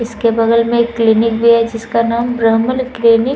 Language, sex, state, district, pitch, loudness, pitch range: Hindi, female, Uttar Pradesh, Muzaffarnagar, 230 Hz, -13 LUFS, 230-235 Hz